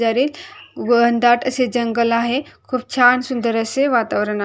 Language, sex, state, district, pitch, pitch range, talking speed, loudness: Marathi, female, Maharashtra, Solapur, 245 Hz, 235-255 Hz, 150 wpm, -17 LUFS